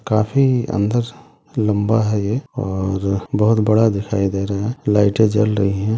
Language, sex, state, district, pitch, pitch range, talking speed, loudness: Hindi, male, Bihar, Madhepura, 105 Hz, 100-115 Hz, 160 wpm, -18 LUFS